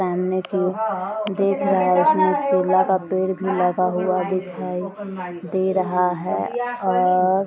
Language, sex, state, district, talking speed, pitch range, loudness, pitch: Hindi, female, Bihar, East Champaran, 145 wpm, 180-190 Hz, -21 LUFS, 185 Hz